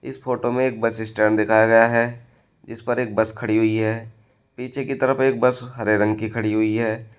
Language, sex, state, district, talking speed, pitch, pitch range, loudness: Hindi, male, Uttar Pradesh, Shamli, 215 wpm, 115 Hz, 110-125 Hz, -20 LUFS